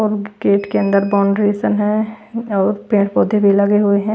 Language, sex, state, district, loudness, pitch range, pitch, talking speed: Hindi, female, Bihar, West Champaran, -16 LUFS, 200-210 Hz, 205 Hz, 190 wpm